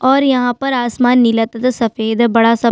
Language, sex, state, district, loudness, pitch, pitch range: Hindi, female, Chhattisgarh, Sukma, -14 LUFS, 240 Hz, 230-255 Hz